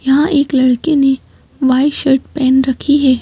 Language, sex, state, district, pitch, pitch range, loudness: Hindi, female, Madhya Pradesh, Bhopal, 270 Hz, 265-285 Hz, -13 LUFS